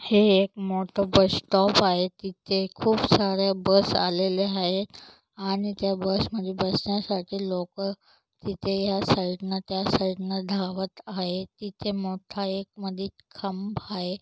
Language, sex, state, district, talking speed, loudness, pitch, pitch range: Marathi, female, Maharashtra, Solapur, 135 wpm, -26 LUFS, 195 Hz, 190-200 Hz